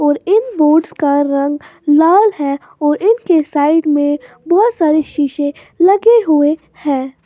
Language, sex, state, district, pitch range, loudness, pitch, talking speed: Hindi, female, Maharashtra, Washim, 290-360 Hz, -13 LUFS, 300 Hz, 140 wpm